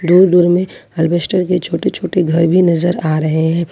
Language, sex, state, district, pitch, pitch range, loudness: Hindi, female, Jharkhand, Ranchi, 175 Hz, 165-180 Hz, -14 LUFS